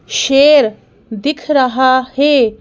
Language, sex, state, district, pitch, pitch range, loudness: Hindi, female, Madhya Pradesh, Bhopal, 260 Hz, 250-285 Hz, -12 LUFS